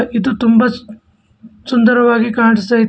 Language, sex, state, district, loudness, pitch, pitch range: Kannada, male, Karnataka, Bangalore, -12 LUFS, 235 Hz, 225-240 Hz